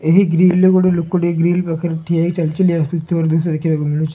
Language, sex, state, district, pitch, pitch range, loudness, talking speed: Odia, male, Odisha, Malkangiri, 170 Hz, 160-180 Hz, -16 LUFS, 230 wpm